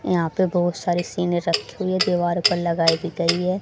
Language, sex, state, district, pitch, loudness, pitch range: Hindi, female, Haryana, Jhajjar, 175 Hz, -21 LUFS, 170-180 Hz